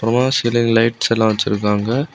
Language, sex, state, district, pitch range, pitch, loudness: Tamil, male, Tamil Nadu, Kanyakumari, 110-120 Hz, 115 Hz, -16 LUFS